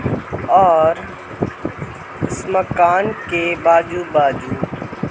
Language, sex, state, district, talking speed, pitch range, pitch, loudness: Hindi, male, Madhya Pradesh, Katni, 70 wpm, 155-175 Hz, 170 Hz, -17 LUFS